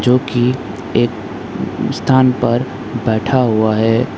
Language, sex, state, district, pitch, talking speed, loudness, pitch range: Hindi, male, West Bengal, Alipurduar, 125 Hz, 115 wpm, -16 LUFS, 115-130 Hz